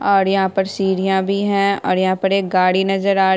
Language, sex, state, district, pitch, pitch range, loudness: Hindi, female, Bihar, Saharsa, 195 Hz, 190-195 Hz, -17 LUFS